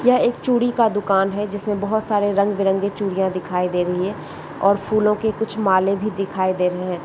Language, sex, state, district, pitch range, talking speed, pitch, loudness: Hindi, female, Chhattisgarh, Bilaspur, 190-215 Hz, 220 wpm, 200 Hz, -20 LUFS